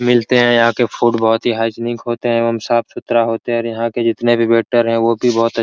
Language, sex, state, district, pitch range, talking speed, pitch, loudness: Hindi, male, Bihar, Araria, 115-120 Hz, 275 wpm, 115 Hz, -15 LUFS